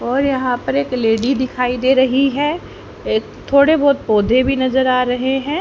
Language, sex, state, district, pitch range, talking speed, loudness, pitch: Hindi, female, Haryana, Charkhi Dadri, 250-275 Hz, 190 wpm, -16 LUFS, 260 Hz